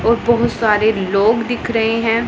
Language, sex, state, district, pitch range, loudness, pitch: Hindi, female, Punjab, Pathankot, 220-235 Hz, -16 LUFS, 225 Hz